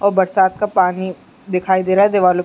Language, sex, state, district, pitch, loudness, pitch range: Hindi, female, Chhattisgarh, Sarguja, 190 Hz, -16 LUFS, 185-200 Hz